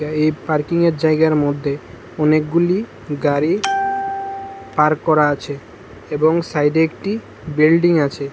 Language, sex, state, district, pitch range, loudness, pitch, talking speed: Bengali, male, Tripura, West Tripura, 150-170 Hz, -18 LUFS, 155 Hz, 100 wpm